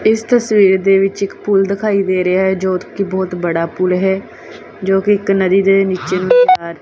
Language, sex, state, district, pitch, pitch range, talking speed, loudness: Punjabi, female, Punjab, Kapurthala, 195 Hz, 185-200 Hz, 195 wpm, -14 LUFS